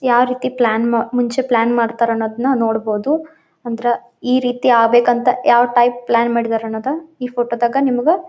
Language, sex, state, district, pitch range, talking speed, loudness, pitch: Kannada, female, Karnataka, Belgaum, 235-255 Hz, 160 wpm, -16 LUFS, 240 Hz